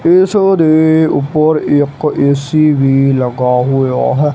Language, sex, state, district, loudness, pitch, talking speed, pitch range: Punjabi, male, Punjab, Kapurthala, -11 LUFS, 150 Hz, 125 wpm, 135-160 Hz